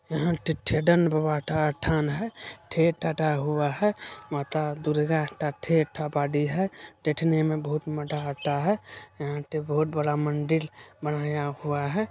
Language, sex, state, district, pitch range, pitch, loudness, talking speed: Hindi, male, Bihar, Supaul, 150-160 Hz, 150 Hz, -27 LUFS, 145 wpm